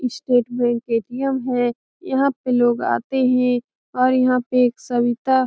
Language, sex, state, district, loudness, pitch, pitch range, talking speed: Hindi, female, Bihar, Saran, -20 LUFS, 250 Hz, 240-255 Hz, 165 wpm